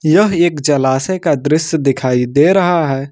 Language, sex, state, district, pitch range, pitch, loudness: Hindi, male, Jharkhand, Ranchi, 135-175 Hz, 150 Hz, -13 LUFS